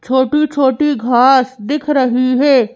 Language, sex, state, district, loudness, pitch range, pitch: Hindi, female, Madhya Pradesh, Bhopal, -13 LUFS, 255-290 Hz, 265 Hz